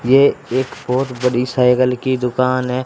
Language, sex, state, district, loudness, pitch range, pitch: Hindi, male, Haryana, Rohtak, -17 LUFS, 125-130 Hz, 130 Hz